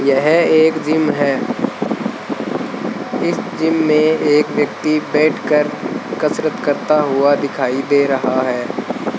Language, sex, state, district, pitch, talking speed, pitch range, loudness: Hindi, male, Rajasthan, Bikaner, 150 Hz, 110 wpm, 140-155 Hz, -16 LUFS